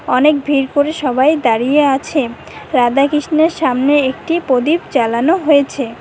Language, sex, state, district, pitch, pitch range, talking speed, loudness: Bengali, female, West Bengal, Cooch Behar, 280 Hz, 260-305 Hz, 130 wpm, -14 LUFS